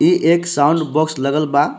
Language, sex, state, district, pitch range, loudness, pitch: Bhojpuri, male, Jharkhand, Palamu, 145-170 Hz, -16 LUFS, 155 Hz